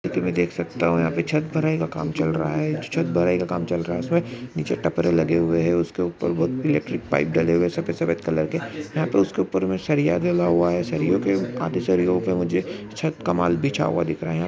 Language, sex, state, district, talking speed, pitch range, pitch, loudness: Maithili, male, Bihar, Araria, 255 wpm, 85-95 Hz, 90 Hz, -23 LUFS